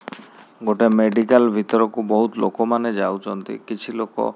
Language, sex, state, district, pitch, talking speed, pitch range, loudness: Odia, male, Odisha, Khordha, 115 Hz, 125 wpm, 105-120 Hz, -20 LUFS